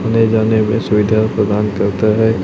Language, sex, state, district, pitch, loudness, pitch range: Hindi, male, Chhattisgarh, Raipur, 110 Hz, -14 LUFS, 105-110 Hz